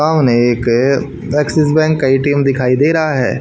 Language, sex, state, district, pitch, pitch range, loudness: Hindi, male, Haryana, Charkhi Dadri, 140 Hz, 125-155 Hz, -13 LUFS